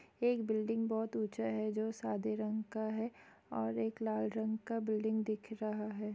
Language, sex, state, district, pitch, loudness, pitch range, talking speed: Hindi, female, Chhattisgarh, Sukma, 215 Hz, -38 LUFS, 210-220 Hz, 185 wpm